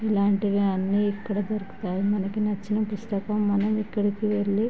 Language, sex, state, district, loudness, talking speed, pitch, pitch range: Telugu, female, Andhra Pradesh, Chittoor, -26 LUFS, 140 wpm, 205 Hz, 200-210 Hz